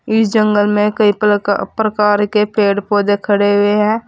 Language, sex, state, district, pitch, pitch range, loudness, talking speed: Hindi, female, Uttar Pradesh, Saharanpur, 210 Hz, 205-215 Hz, -14 LUFS, 175 wpm